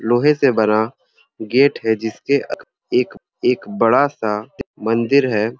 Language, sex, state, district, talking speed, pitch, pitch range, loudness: Sadri, male, Chhattisgarh, Jashpur, 130 wpm, 115 Hz, 110-130 Hz, -18 LUFS